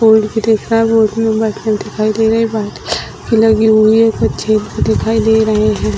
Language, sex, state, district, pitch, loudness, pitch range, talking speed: Hindi, female, Bihar, Jamui, 220 Hz, -13 LUFS, 215-225 Hz, 210 wpm